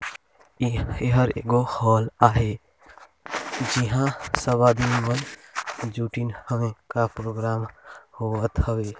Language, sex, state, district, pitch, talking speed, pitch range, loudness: Hindi, male, Chhattisgarh, Balrampur, 120 Hz, 100 wpm, 115-125 Hz, -24 LUFS